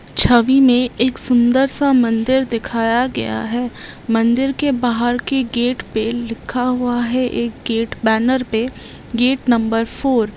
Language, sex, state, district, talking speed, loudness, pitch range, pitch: Hindi, female, Bihar, Saharsa, 150 wpm, -17 LUFS, 230-255 Hz, 245 Hz